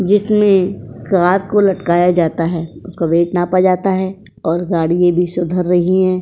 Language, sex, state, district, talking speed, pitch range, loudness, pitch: Hindi, female, Uttar Pradesh, Etah, 175 wpm, 170-190 Hz, -15 LUFS, 180 Hz